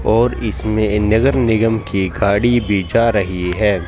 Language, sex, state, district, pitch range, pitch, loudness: Hindi, male, Haryana, Jhajjar, 100-115 Hz, 105 Hz, -16 LUFS